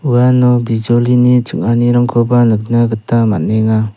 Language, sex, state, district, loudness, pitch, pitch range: Garo, male, Meghalaya, South Garo Hills, -12 LUFS, 120 Hz, 115-120 Hz